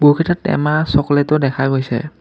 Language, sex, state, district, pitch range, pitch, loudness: Assamese, male, Assam, Kamrup Metropolitan, 135-155 Hz, 145 Hz, -16 LUFS